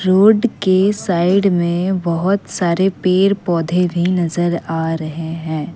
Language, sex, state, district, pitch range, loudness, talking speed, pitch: Hindi, female, Assam, Kamrup Metropolitan, 170-190 Hz, -16 LUFS, 135 wpm, 180 Hz